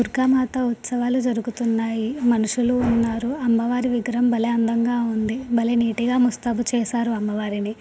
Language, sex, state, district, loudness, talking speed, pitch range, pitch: Telugu, female, Andhra Pradesh, Srikakulam, -22 LUFS, 130 wpm, 230-245 Hz, 235 Hz